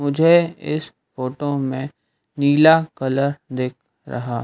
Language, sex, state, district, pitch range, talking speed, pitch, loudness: Hindi, male, Madhya Pradesh, Dhar, 130-155 Hz, 110 wpm, 140 Hz, -19 LUFS